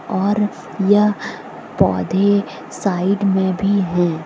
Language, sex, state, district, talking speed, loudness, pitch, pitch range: Hindi, female, Jharkhand, Deoghar, 100 wpm, -18 LUFS, 195 Hz, 185-205 Hz